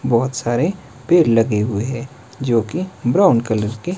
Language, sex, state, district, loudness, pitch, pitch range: Hindi, male, Himachal Pradesh, Shimla, -18 LUFS, 125 Hz, 115-135 Hz